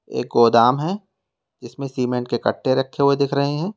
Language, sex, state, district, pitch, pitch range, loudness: Hindi, male, Uttar Pradesh, Lalitpur, 140 Hz, 125-150 Hz, -19 LUFS